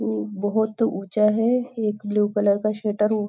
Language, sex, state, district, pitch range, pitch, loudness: Hindi, female, Maharashtra, Nagpur, 205-220 Hz, 210 Hz, -23 LUFS